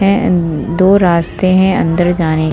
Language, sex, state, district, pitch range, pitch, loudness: Hindi, female, Bihar, Vaishali, 165-190 Hz, 175 Hz, -12 LUFS